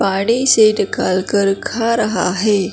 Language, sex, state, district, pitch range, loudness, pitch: Hindi, female, Chhattisgarh, Kabirdham, 195-230 Hz, -15 LUFS, 210 Hz